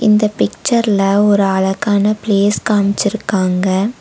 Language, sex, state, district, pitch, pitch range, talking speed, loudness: Tamil, female, Tamil Nadu, Nilgiris, 205 Hz, 195-215 Hz, 90 wpm, -14 LUFS